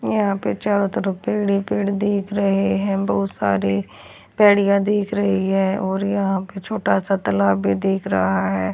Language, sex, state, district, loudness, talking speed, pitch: Hindi, female, Haryana, Charkhi Dadri, -20 LUFS, 180 wpm, 195 Hz